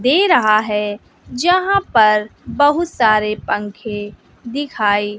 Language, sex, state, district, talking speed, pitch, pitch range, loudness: Hindi, female, Bihar, West Champaran, 105 wpm, 220 Hz, 210-290 Hz, -16 LUFS